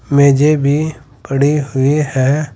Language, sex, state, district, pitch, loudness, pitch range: Hindi, male, Uttar Pradesh, Saharanpur, 140 Hz, -14 LUFS, 135-150 Hz